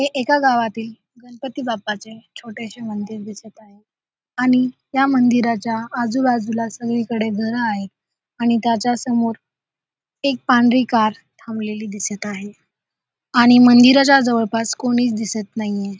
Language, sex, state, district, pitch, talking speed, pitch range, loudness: Marathi, female, Maharashtra, Dhule, 230 Hz, 115 wpm, 215-245 Hz, -18 LUFS